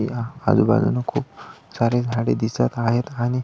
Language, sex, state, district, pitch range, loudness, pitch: Marathi, male, Maharashtra, Solapur, 110-120 Hz, -21 LUFS, 120 Hz